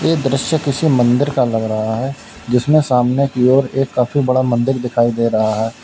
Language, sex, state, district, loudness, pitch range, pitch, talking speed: Hindi, male, Uttar Pradesh, Lalitpur, -16 LUFS, 120-135 Hz, 125 Hz, 205 wpm